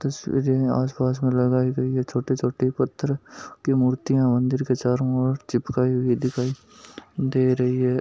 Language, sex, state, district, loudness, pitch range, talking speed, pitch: Hindi, male, Rajasthan, Nagaur, -23 LUFS, 125-130 Hz, 155 wpm, 130 Hz